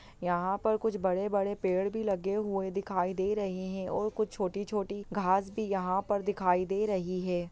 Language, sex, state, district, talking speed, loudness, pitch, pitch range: Hindi, female, Bihar, Muzaffarpur, 200 wpm, -31 LUFS, 195 Hz, 185-205 Hz